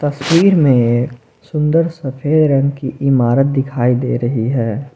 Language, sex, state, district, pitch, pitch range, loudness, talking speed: Hindi, male, Jharkhand, Ranchi, 135 Hz, 125-145 Hz, -15 LUFS, 135 wpm